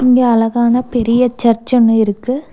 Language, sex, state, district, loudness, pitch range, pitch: Tamil, female, Tamil Nadu, Nilgiris, -13 LUFS, 230-250 Hz, 240 Hz